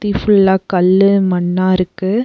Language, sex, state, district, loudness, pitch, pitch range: Tamil, female, Tamil Nadu, Nilgiris, -13 LUFS, 190 Hz, 185-200 Hz